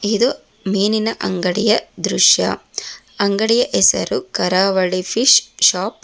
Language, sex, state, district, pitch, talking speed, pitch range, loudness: Kannada, female, Karnataka, Bangalore, 200 Hz, 100 wpm, 185-220 Hz, -16 LUFS